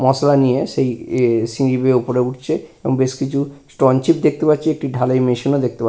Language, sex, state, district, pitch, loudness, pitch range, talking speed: Bengali, male, West Bengal, Purulia, 130 Hz, -17 LUFS, 125-140 Hz, 205 wpm